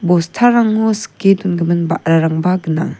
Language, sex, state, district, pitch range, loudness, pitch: Garo, female, Meghalaya, West Garo Hills, 165-215 Hz, -14 LUFS, 180 Hz